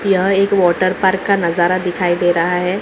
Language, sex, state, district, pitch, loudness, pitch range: Hindi, female, Maharashtra, Mumbai Suburban, 185 Hz, -15 LUFS, 175-195 Hz